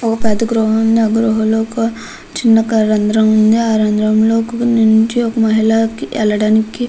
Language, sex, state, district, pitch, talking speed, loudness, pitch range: Telugu, female, Andhra Pradesh, Krishna, 220 Hz, 155 wpm, -13 LUFS, 220-225 Hz